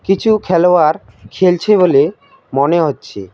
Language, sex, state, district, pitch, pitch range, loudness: Bengali, male, West Bengal, Alipurduar, 165 Hz, 130-185 Hz, -13 LUFS